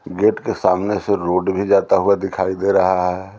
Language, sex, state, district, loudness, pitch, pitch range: Hindi, male, Bihar, West Champaran, -17 LUFS, 95 Hz, 90-100 Hz